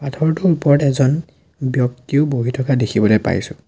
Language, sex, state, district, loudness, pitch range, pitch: Assamese, male, Assam, Sonitpur, -17 LUFS, 125-145 Hz, 135 Hz